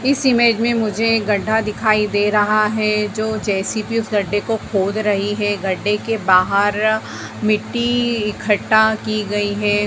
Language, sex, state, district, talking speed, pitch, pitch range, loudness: Hindi, female, Bihar, Jahanabad, 160 wpm, 215 Hz, 205-220 Hz, -17 LUFS